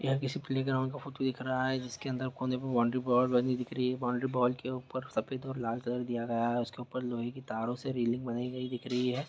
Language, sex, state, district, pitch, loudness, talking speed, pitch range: Hindi, male, Jharkhand, Sahebganj, 125 Hz, -33 LUFS, 245 wpm, 120-130 Hz